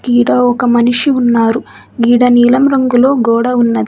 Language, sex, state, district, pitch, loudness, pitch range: Telugu, female, Telangana, Hyderabad, 245 Hz, -10 LUFS, 235-250 Hz